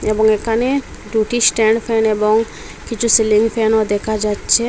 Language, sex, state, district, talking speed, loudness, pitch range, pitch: Bengali, female, Assam, Hailakandi, 140 wpm, -15 LUFS, 215-230 Hz, 220 Hz